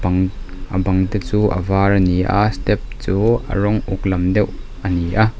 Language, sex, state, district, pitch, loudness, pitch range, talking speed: Mizo, male, Mizoram, Aizawl, 95 Hz, -18 LUFS, 95-105 Hz, 210 wpm